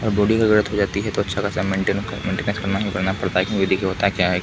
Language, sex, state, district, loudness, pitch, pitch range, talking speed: Hindi, male, Bihar, Kishanganj, -21 LUFS, 100 Hz, 95-105 Hz, 270 wpm